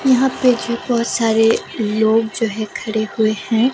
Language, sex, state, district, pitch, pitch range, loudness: Hindi, female, Himachal Pradesh, Shimla, 225 Hz, 220-240 Hz, -17 LUFS